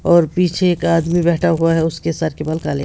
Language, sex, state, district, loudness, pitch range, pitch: Hindi, female, Bihar, West Champaran, -16 LUFS, 160-175 Hz, 165 Hz